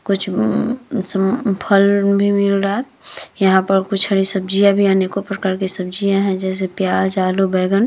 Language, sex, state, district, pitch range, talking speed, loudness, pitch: Hindi, female, Uttar Pradesh, Hamirpur, 190-200 Hz, 175 wpm, -17 LUFS, 195 Hz